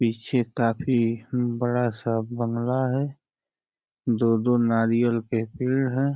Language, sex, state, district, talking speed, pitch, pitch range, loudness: Hindi, male, Uttar Pradesh, Deoria, 105 wpm, 120 Hz, 115-130 Hz, -24 LUFS